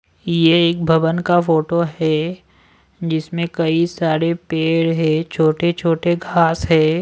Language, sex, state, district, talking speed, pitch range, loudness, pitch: Hindi, male, Delhi, New Delhi, 120 wpm, 160-170 Hz, -17 LUFS, 165 Hz